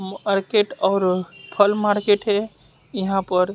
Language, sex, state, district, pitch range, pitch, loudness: Hindi, male, Bihar, West Champaran, 185-205 Hz, 195 Hz, -20 LUFS